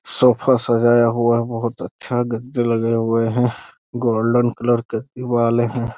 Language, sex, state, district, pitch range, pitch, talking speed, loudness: Hindi, male, Bihar, Muzaffarpur, 115-120 Hz, 120 Hz, 150 wpm, -18 LUFS